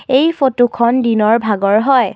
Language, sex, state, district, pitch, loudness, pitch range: Assamese, female, Assam, Kamrup Metropolitan, 240 Hz, -13 LUFS, 220-265 Hz